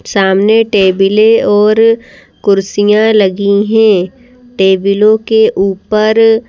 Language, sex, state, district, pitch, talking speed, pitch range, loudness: Hindi, female, Madhya Pradesh, Bhopal, 210 Hz, 85 wpm, 195-225 Hz, -9 LUFS